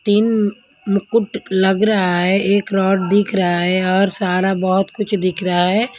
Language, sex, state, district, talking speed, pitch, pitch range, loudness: Hindi, female, Punjab, Kapurthala, 170 wpm, 195 Hz, 185-205 Hz, -17 LUFS